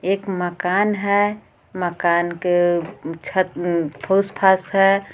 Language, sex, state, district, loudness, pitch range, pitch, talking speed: Hindi, female, Jharkhand, Garhwa, -20 LUFS, 175-195 Hz, 185 Hz, 105 wpm